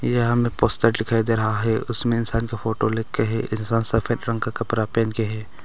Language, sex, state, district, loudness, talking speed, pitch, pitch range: Hindi, male, Arunachal Pradesh, Longding, -22 LUFS, 235 wpm, 115 Hz, 110-115 Hz